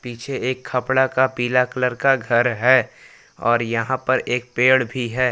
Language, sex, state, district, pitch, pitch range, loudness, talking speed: Hindi, male, Jharkhand, Palamu, 125 Hz, 120-130 Hz, -19 LUFS, 180 wpm